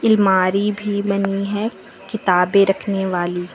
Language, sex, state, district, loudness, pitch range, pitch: Hindi, female, Uttar Pradesh, Lucknow, -18 LUFS, 190-205 Hz, 200 Hz